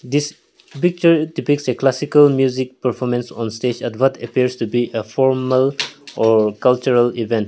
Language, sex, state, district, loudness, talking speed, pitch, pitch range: English, male, Nagaland, Kohima, -17 LUFS, 150 wpm, 125 Hz, 120-135 Hz